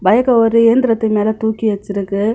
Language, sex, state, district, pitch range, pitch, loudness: Tamil, female, Tamil Nadu, Kanyakumari, 205-230 Hz, 220 Hz, -14 LUFS